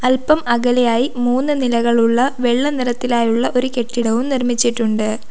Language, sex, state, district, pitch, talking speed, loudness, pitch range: Malayalam, female, Kerala, Kollam, 245 Hz, 100 wpm, -17 LUFS, 235-255 Hz